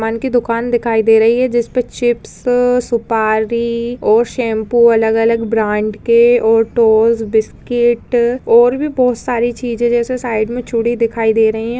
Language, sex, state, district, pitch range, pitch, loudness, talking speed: Hindi, female, Uttar Pradesh, Budaun, 225-240 Hz, 235 Hz, -14 LUFS, 155 wpm